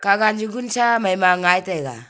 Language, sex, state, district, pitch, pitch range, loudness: Wancho, female, Arunachal Pradesh, Longding, 195 Hz, 180-220 Hz, -18 LUFS